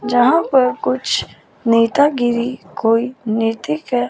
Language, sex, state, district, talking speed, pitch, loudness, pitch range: Hindi, female, Chandigarh, Chandigarh, 100 wpm, 245 Hz, -17 LUFS, 230-260 Hz